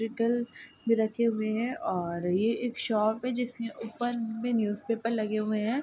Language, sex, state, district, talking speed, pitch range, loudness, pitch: Hindi, female, Bihar, Darbhanga, 185 wpm, 215-240 Hz, -30 LUFS, 230 Hz